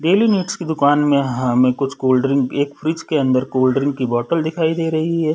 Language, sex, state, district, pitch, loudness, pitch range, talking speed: Hindi, male, Chhattisgarh, Sarguja, 145 Hz, -18 LUFS, 130-160 Hz, 225 wpm